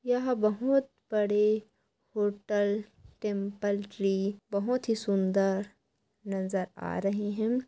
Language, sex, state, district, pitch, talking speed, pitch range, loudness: Hindi, female, Chhattisgarh, Korba, 210 Hz, 100 wpm, 200-220 Hz, -30 LUFS